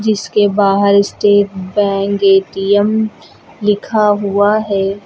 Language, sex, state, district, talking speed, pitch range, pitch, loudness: Hindi, female, Uttar Pradesh, Lucknow, 95 wpm, 200-210 Hz, 205 Hz, -13 LUFS